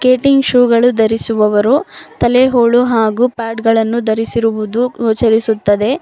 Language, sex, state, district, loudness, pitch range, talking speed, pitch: Kannada, female, Karnataka, Bangalore, -13 LUFS, 220-245 Hz, 110 wpm, 230 Hz